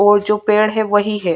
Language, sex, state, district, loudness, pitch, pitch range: Hindi, female, Chhattisgarh, Sukma, -15 LUFS, 210 Hz, 205-210 Hz